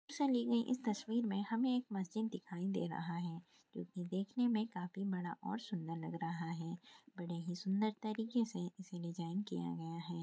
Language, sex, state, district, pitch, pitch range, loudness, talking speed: Hindi, female, Maharashtra, Aurangabad, 190 Hz, 170-220 Hz, -41 LUFS, 170 wpm